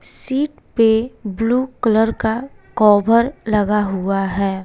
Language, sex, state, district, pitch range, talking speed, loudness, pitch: Hindi, female, Bihar, West Champaran, 205-235 Hz, 115 wpm, -17 LUFS, 220 Hz